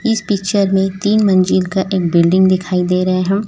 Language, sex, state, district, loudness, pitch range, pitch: Hindi, female, Chhattisgarh, Raipur, -14 LUFS, 185-200 Hz, 190 Hz